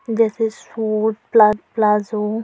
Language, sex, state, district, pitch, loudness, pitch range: Hindi, female, Chhattisgarh, Korba, 220 Hz, -18 LUFS, 215-225 Hz